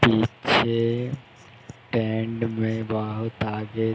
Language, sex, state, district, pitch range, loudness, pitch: Hindi, male, Uttar Pradesh, Hamirpur, 110-120 Hz, -25 LUFS, 115 Hz